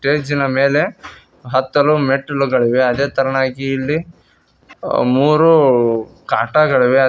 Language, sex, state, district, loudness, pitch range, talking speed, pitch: Kannada, male, Karnataka, Koppal, -15 LUFS, 130-150 Hz, 95 wpm, 135 Hz